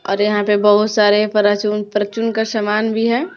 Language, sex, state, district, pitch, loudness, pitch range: Hindi, female, Maharashtra, Mumbai Suburban, 210 Hz, -16 LUFS, 205-220 Hz